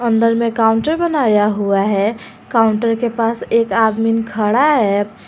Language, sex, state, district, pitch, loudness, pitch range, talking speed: Hindi, female, Jharkhand, Garhwa, 225 Hz, -15 LUFS, 210-230 Hz, 150 wpm